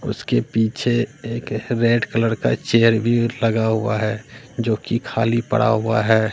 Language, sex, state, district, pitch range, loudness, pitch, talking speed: Hindi, male, Bihar, Katihar, 110-115 Hz, -20 LUFS, 115 Hz, 150 wpm